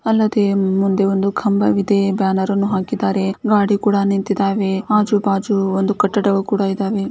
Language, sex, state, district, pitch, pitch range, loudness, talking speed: Kannada, female, Karnataka, Gulbarga, 200 Hz, 195-205 Hz, -17 LUFS, 135 wpm